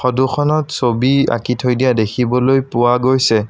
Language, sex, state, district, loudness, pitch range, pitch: Assamese, male, Assam, Sonitpur, -15 LUFS, 120-130 Hz, 125 Hz